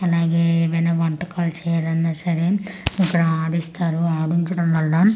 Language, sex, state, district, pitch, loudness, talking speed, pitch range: Telugu, female, Andhra Pradesh, Manyam, 170 Hz, -21 LUFS, 130 wpm, 165-175 Hz